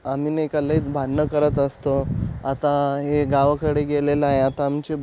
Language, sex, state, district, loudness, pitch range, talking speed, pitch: Marathi, male, Maharashtra, Aurangabad, -21 LUFS, 140-150 Hz, 180 wpm, 145 Hz